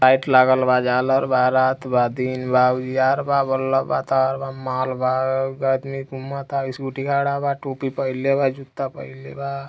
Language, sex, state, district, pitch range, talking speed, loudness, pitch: Hindi, male, Uttar Pradesh, Deoria, 130-135 Hz, 185 wpm, -21 LUFS, 135 Hz